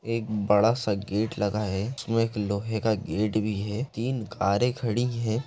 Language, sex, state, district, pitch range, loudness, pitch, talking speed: Hindi, male, Bihar, Begusarai, 105-115 Hz, -27 LUFS, 110 Hz, 175 wpm